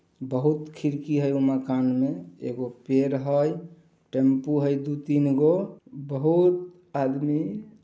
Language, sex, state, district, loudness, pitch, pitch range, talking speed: Maithili, male, Bihar, Samastipur, -25 LUFS, 145 Hz, 135-155 Hz, 115 wpm